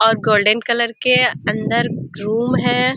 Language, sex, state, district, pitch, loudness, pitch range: Hindi, female, Uttar Pradesh, Deoria, 230 Hz, -16 LUFS, 215-245 Hz